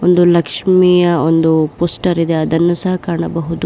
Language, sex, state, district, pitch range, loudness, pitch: Kannada, female, Karnataka, Bangalore, 165-180 Hz, -13 LUFS, 170 Hz